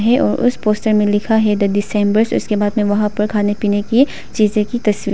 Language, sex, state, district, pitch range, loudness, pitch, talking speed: Hindi, female, Arunachal Pradesh, Papum Pare, 205-220 Hz, -16 LUFS, 210 Hz, 220 wpm